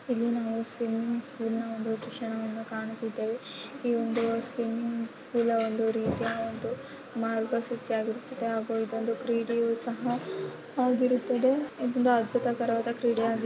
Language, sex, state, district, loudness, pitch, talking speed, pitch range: Kannada, female, Karnataka, Raichur, -30 LUFS, 235 Hz, 125 wpm, 225-245 Hz